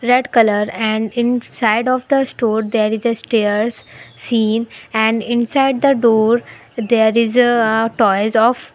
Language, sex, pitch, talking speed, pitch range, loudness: English, female, 230 Hz, 155 wpm, 220-240 Hz, -16 LUFS